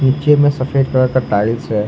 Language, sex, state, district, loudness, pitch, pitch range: Hindi, male, Jharkhand, Ranchi, -14 LUFS, 130 Hz, 115-135 Hz